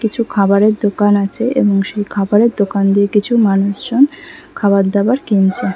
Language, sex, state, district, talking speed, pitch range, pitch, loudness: Bengali, female, West Bengal, Kolkata, 155 wpm, 200-230 Hz, 205 Hz, -14 LUFS